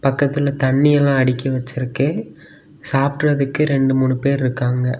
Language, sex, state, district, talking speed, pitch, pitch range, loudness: Tamil, male, Tamil Nadu, Kanyakumari, 120 wpm, 135 Hz, 130-145 Hz, -18 LUFS